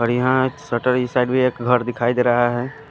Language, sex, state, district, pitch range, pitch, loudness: Hindi, male, Odisha, Khordha, 120-130 Hz, 125 Hz, -19 LUFS